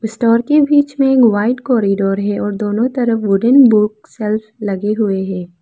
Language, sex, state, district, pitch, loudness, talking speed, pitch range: Hindi, female, Arunachal Pradesh, Lower Dibang Valley, 220 Hz, -14 LUFS, 190 wpm, 205-245 Hz